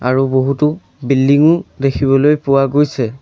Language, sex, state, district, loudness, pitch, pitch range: Assamese, male, Assam, Sonitpur, -14 LUFS, 135 Hz, 135-150 Hz